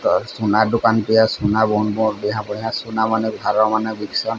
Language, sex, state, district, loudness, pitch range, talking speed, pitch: Odia, male, Odisha, Sambalpur, -19 LUFS, 105-110 Hz, 95 wpm, 110 Hz